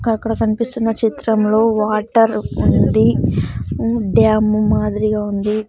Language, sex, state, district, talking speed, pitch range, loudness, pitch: Telugu, female, Andhra Pradesh, Sri Satya Sai, 95 wpm, 210-225 Hz, -16 LUFS, 215 Hz